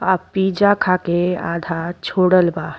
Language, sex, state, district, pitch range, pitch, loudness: Bhojpuri, female, Uttar Pradesh, Deoria, 170-190 Hz, 180 Hz, -18 LUFS